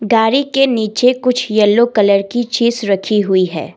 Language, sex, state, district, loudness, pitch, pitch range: Hindi, female, Assam, Kamrup Metropolitan, -14 LUFS, 225 Hz, 205-245 Hz